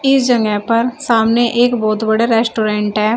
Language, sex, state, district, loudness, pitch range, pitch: Hindi, female, Uttar Pradesh, Shamli, -14 LUFS, 215-240 Hz, 230 Hz